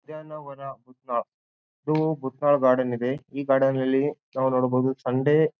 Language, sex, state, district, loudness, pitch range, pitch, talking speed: Kannada, male, Karnataka, Bijapur, -24 LUFS, 130-150 Hz, 135 Hz, 140 wpm